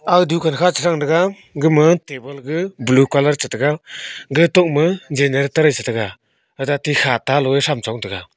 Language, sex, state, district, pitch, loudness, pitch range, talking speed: Wancho, male, Arunachal Pradesh, Longding, 145 Hz, -17 LUFS, 135-165 Hz, 160 wpm